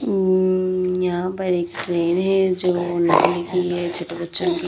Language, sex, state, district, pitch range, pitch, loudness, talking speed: Hindi, female, Haryana, Rohtak, 175-185 Hz, 180 Hz, -20 LUFS, 180 wpm